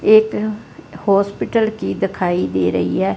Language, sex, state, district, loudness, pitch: Hindi, female, Punjab, Fazilka, -18 LUFS, 180 Hz